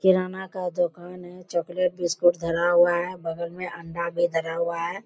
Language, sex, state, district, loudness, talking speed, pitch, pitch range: Hindi, female, Bihar, Bhagalpur, -25 LUFS, 190 wpm, 175 Hz, 170-180 Hz